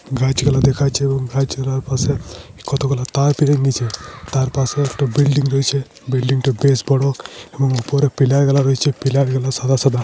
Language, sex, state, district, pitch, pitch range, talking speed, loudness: Bengali, male, Jharkhand, Jamtara, 135 Hz, 130-140 Hz, 160 wpm, -17 LUFS